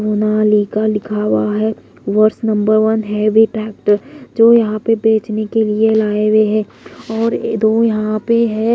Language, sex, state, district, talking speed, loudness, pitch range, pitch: Hindi, female, Odisha, Malkangiri, 160 wpm, -15 LUFS, 215-220 Hz, 215 Hz